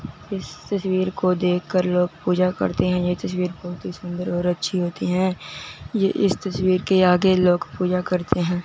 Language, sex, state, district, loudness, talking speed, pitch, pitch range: Hindi, male, Punjab, Fazilka, -22 LUFS, 180 wpm, 180 Hz, 180-185 Hz